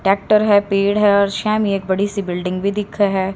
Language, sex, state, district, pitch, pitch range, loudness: Hindi, female, Haryana, Rohtak, 200 Hz, 195-205 Hz, -17 LUFS